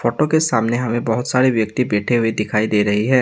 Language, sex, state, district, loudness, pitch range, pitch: Hindi, male, Assam, Sonitpur, -18 LUFS, 110-125 Hz, 115 Hz